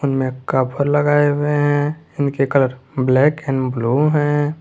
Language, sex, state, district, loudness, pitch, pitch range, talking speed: Hindi, male, Jharkhand, Garhwa, -18 LUFS, 140 Hz, 130-145 Hz, 145 wpm